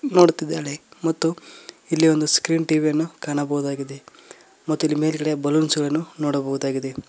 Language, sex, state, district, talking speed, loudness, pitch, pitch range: Kannada, male, Karnataka, Koppal, 120 wpm, -22 LUFS, 155 Hz, 145-160 Hz